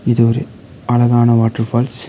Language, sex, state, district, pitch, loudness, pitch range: Tamil, male, Tamil Nadu, Nilgiris, 120 Hz, -14 LUFS, 115-120 Hz